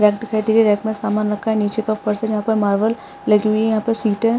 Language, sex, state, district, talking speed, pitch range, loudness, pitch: Hindi, male, Uttarakhand, Tehri Garhwal, 315 wpm, 210-220 Hz, -18 LUFS, 215 Hz